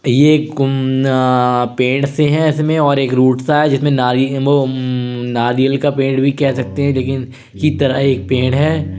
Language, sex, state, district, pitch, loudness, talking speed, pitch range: Hindi, male, Uttar Pradesh, Budaun, 135 Hz, -14 LUFS, 180 wpm, 130-145 Hz